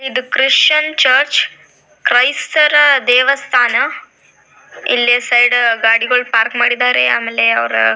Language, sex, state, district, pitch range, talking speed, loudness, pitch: Kannada, female, Karnataka, Belgaum, 240-270 Hz, 100 wpm, -12 LUFS, 250 Hz